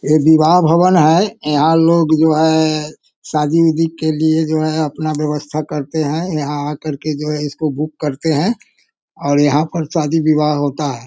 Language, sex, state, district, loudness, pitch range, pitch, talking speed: Hindi, male, Bihar, Sitamarhi, -15 LUFS, 150-160 Hz, 155 Hz, 190 wpm